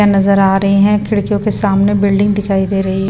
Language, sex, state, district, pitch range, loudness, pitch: Hindi, female, Bihar, Patna, 195-205 Hz, -12 LUFS, 200 Hz